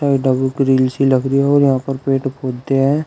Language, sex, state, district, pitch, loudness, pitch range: Hindi, male, Uttar Pradesh, Shamli, 135 Hz, -16 LUFS, 130-140 Hz